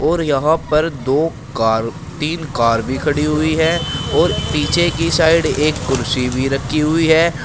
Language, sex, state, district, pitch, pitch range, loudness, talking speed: Hindi, male, Uttar Pradesh, Shamli, 150 Hz, 130-160 Hz, -16 LUFS, 170 wpm